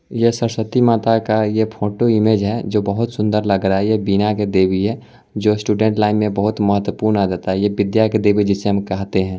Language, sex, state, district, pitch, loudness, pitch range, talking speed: Hindi, male, Bihar, Muzaffarpur, 105 Hz, -17 LUFS, 100-110 Hz, 230 wpm